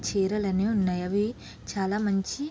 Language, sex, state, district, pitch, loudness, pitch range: Telugu, female, Andhra Pradesh, Srikakulam, 200 Hz, -28 LUFS, 190-210 Hz